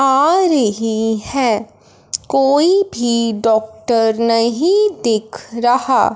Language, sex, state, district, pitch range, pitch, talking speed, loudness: Hindi, female, Punjab, Fazilka, 225-275 Hz, 235 Hz, 90 wpm, -15 LUFS